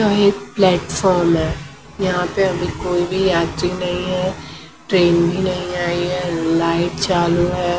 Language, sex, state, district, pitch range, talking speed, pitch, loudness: Hindi, female, Maharashtra, Mumbai Suburban, 175-185 Hz, 155 wpm, 180 Hz, -18 LUFS